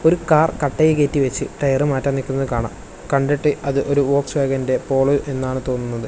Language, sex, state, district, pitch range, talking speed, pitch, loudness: Malayalam, male, Kerala, Kasaragod, 135-145 Hz, 155 wpm, 140 Hz, -19 LUFS